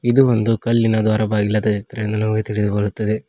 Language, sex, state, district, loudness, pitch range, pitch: Kannada, male, Karnataka, Koppal, -18 LUFS, 105-115 Hz, 110 Hz